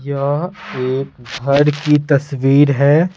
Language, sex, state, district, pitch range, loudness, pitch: Hindi, male, Bihar, Patna, 135-150 Hz, -15 LUFS, 140 Hz